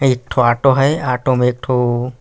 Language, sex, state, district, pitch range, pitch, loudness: Hindi, male, Chhattisgarh, Raigarh, 125-135 Hz, 125 Hz, -15 LUFS